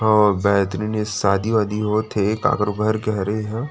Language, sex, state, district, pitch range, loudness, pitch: Chhattisgarhi, male, Chhattisgarh, Rajnandgaon, 100-110 Hz, -20 LUFS, 105 Hz